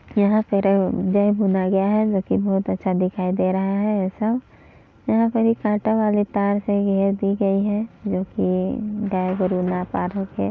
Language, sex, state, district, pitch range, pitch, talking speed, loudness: Hindi, female, Chhattisgarh, Balrampur, 190-210 Hz, 200 Hz, 200 wpm, -21 LUFS